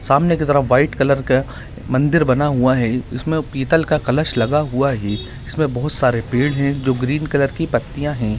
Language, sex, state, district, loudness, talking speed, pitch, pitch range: Hindi, male, Bihar, Gaya, -18 LUFS, 200 wpm, 135 Hz, 125-150 Hz